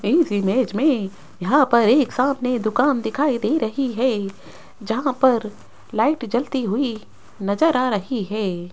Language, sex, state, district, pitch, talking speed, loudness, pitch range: Hindi, female, Rajasthan, Jaipur, 240 Hz, 145 wpm, -20 LUFS, 210-270 Hz